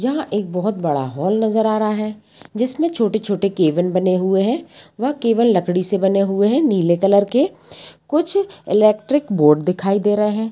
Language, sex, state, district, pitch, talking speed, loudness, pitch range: Hindi, female, Bihar, Darbhanga, 210 Hz, 180 wpm, -18 LUFS, 190-230 Hz